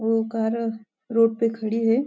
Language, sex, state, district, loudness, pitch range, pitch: Hindi, female, Maharashtra, Nagpur, -23 LUFS, 225-230 Hz, 225 Hz